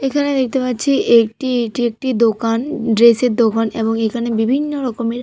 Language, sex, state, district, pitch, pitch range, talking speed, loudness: Bengali, female, West Bengal, Purulia, 235 Hz, 230-260 Hz, 160 wpm, -16 LUFS